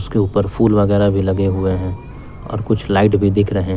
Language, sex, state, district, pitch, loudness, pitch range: Hindi, male, Jharkhand, Palamu, 100 Hz, -16 LUFS, 95-110 Hz